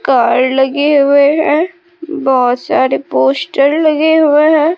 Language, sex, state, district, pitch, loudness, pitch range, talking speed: Hindi, female, Bihar, Katihar, 285 Hz, -11 LUFS, 260-315 Hz, 125 wpm